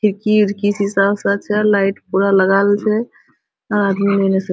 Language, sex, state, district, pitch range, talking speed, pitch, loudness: Hindi, female, Bihar, Araria, 195-210 Hz, 170 wpm, 200 Hz, -16 LUFS